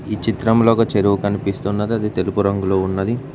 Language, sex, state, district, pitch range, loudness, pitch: Telugu, male, Telangana, Mahabubabad, 100-115 Hz, -18 LUFS, 100 Hz